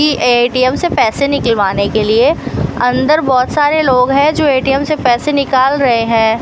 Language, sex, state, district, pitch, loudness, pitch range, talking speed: Hindi, female, Rajasthan, Bikaner, 260 Hz, -12 LUFS, 240-290 Hz, 180 wpm